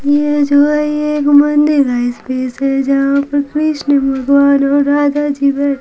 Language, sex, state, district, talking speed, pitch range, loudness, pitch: Hindi, female, Bihar, Patna, 145 wpm, 275-290 Hz, -13 LUFS, 285 Hz